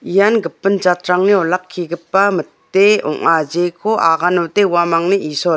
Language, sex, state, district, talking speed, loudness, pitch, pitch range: Garo, female, Meghalaya, West Garo Hills, 110 wpm, -15 LUFS, 180 Hz, 170-195 Hz